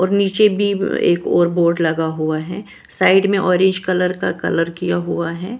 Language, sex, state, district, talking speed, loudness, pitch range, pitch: Hindi, female, Maharashtra, Washim, 195 wpm, -17 LUFS, 165-195 Hz, 180 Hz